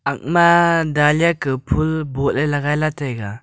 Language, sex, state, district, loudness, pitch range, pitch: Wancho, male, Arunachal Pradesh, Longding, -17 LUFS, 140-160 Hz, 150 Hz